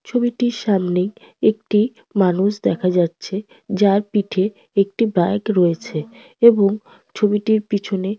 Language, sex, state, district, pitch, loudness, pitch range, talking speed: Bengali, female, West Bengal, North 24 Parganas, 205 Hz, -19 LUFS, 190-215 Hz, 110 wpm